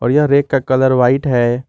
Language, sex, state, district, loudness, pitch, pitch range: Hindi, male, Jharkhand, Garhwa, -14 LUFS, 130 Hz, 125-140 Hz